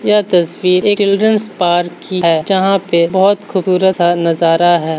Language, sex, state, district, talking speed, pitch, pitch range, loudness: Hindi, male, Bihar, Saharsa, 145 wpm, 185 Hz, 170-200 Hz, -12 LUFS